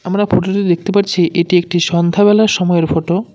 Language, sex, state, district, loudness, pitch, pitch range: Bengali, male, West Bengal, Cooch Behar, -13 LUFS, 180 Hz, 170-200 Hz